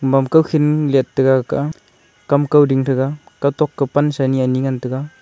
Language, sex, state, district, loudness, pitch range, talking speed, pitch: Wancho, male, Arunachal Pradesh, Longding, -17 LUFS, 135-150 Hz, 185 wpm, 140 Hz